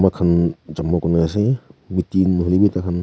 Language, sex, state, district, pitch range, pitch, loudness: Nagamese, male, Nagaland, Kohima, 85-95 Hz, 90 Hz, -19 LUFS